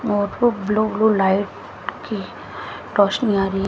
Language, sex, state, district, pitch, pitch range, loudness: Hindi, female, Haryana, Jhajjar, 205 Hz, 195-220 Hz, -20 LUFS